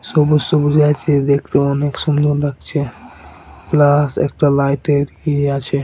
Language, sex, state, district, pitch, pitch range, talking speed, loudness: Bengali, male, West Bengal, Dakshin Dinajpur, 145 Hz, 140-150 Hz, 125 wpm, -16 LUFS